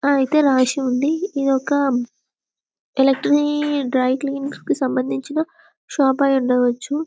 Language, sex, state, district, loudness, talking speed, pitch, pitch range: Telugu, female, Telangana, Karimnagar, -19 LUFS, 100 wpm, 275 Hz, 265-295 Hz